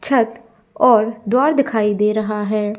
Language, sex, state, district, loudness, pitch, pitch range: Hindi, female, Chhattisgarh, Bilaspur, -17 LUFS, 225 Hz, 210-235 Hz